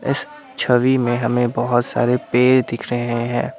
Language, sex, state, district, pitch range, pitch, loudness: Hindi, male, Assam, Kamrup Metropolitan, 120-130 Hz, 120 Hz, -18 LUFS